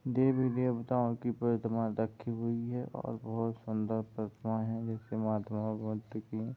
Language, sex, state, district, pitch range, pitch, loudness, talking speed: Hindi, male, Bihar, Gopalganj, 110-120 Hz, 115 Hz, -35 LUFS, 135 wpm